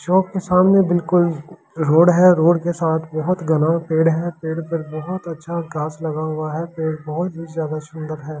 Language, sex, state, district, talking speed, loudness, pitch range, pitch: Hindi, male, Delhi, New Delhi, 195 wpm, -19 LUFS, 155-175 Hz, 165 Hz